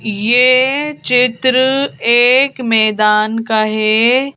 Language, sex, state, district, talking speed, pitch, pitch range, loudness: Hindi, female, Madhya Pradesh, Bhopal, 80 wpm, 245 Hz, 220-260 Hz, -12 LUFS